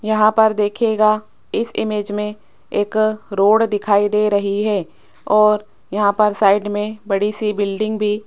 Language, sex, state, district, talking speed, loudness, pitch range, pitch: Hindi, female, Rajasthan, Jaipur, 160 wpm, -18 LUFS, 205-215 Hz, 210 Hz